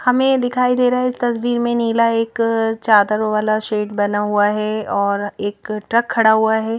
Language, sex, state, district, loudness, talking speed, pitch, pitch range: Hindi, female, Madhya Pradesh, Bhopal, -17 LUFS, 205 wpm, 220 Hz, 210-240 Hz